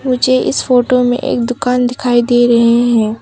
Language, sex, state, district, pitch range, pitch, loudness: Hindi, female, Arunachal Pradesh, Papum Pare, 240-250 Hz, 245 Hz, -12 LUFS